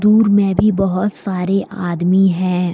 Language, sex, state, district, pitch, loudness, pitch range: Hindi, female, Jharkhand, Deoghar, 195 Hz, -16 LUFS, 180-205 Hz